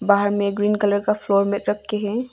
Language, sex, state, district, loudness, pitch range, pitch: Hindi, female, Arunachal Pradesh, Longding, -21 LUFS, 200-210 Hz, 205 Hz